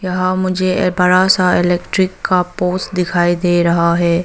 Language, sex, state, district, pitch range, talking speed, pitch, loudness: Hindi, female, Arunachal Pradesh, Papum Pare, 175-185 Hz, 155 wpm, 180 Hz, -14 LUFS